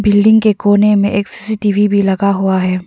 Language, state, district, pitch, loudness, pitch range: Hindi, Arunachal Pradesh, Papum Pare, 205 Hz, -12 LUFS, 200-210 Hz